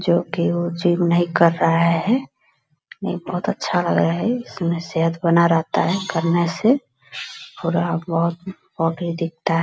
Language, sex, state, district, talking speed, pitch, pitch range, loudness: Hindi, female, Bihar, Purnia, 145 wpm, 170 Hz, 165-175 Hz, -20 LUFS